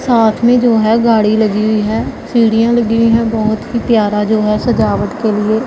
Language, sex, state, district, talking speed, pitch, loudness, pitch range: Hindi, female, Punjab, Pathankot, 210 wpm, 225 Hz, -12 LUFS, 215-235 Hz